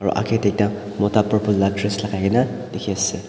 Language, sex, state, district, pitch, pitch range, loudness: Nagamese, male, Nagaland, Dimapur, 105 Hz, 100-105 Hz, -20 LUFS